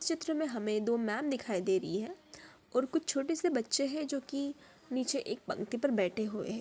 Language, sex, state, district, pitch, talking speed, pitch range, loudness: Hindi, female, Bihar, Araria, 265 Hz, 220 wpm, 215-285 Hz, -34 LUFS